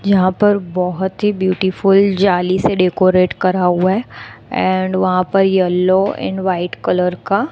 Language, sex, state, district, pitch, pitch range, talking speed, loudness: Hindi, female, Gujarat, Gandhinagar, 185 Hz, 180-195 Hz, 150 wpm, -15 LUFS